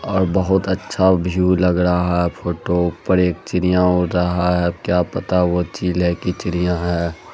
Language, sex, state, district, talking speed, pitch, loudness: Hindi, male, Bihar, Araria, 180 wpm, 90 Hz, -18 LUFS